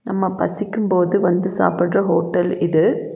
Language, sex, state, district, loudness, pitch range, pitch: Tamil, female, Tamil Nadu, Nilgiris, -18 LUFS, 185-205 Hz, 190 Hz